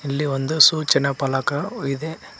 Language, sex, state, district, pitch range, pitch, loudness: Kannada, male, Karnataka, Koppal, 135-160 Hz, 140 Hz, -19 LUFS